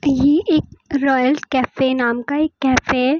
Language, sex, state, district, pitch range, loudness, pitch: Hindi, female, Uttar Pradesh, Lucknow, 260-305 Hz, -18 LUFS, 275 Hz